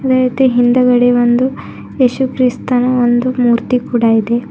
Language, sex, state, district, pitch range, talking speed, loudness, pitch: Kannada, female, Karnataka, Bidar, 240-255 Hz, 120 wpm, -13 LUFS, 250 Hz